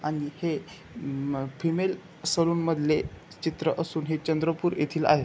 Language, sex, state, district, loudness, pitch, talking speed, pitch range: Marathi, male, Maharashtra, Chandrapur, -28 LUFS, 160 Hz, 135 wpm, 150-170 Hz